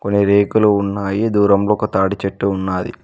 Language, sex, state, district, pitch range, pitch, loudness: Telugu, male, Telangana, Mahabubabad, 100-105 Hz, 100 Hz, -16 LUFS